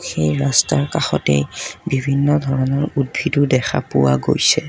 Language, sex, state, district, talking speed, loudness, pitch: Assamese, male, Assam, Kamrup Metropolitan, 115 wpm, -18 LUFS, 130 Hz